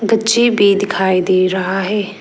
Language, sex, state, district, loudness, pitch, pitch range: Hindi, female, Arunachal Pradesh, Lower Dibang Valley, -14 LUFS, 200 Hz, 190-210 Hz